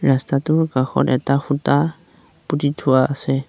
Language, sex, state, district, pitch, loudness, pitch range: Assamese, male, Assam, Sonitpur, 140 Hz, -19 LUFS, 135-155 Hz